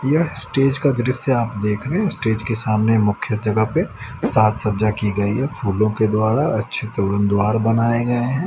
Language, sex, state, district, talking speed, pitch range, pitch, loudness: Hindi, male, Haryana, Rohtak, 190 wpm, 105-130 Hz, 110 Hz, -19 LUFS